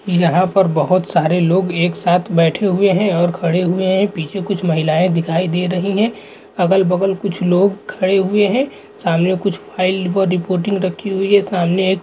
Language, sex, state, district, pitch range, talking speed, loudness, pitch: Hindi, male, Andhra Pradesh, Srikakulam, 175-195 Hz, 190 wpm, -16 LUFS, 185 Hz